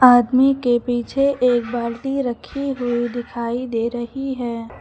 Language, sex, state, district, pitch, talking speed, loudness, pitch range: Hindi, male, Uttar Pradesh, Lucknow, 245 Hz, 135 wpm, -20 LUFS, 240-265 Hz